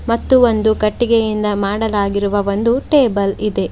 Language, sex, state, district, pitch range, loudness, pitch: Kannada, female, Karnataka, Bidar, 205-230 Hz, -15 LUFS, 215 Hz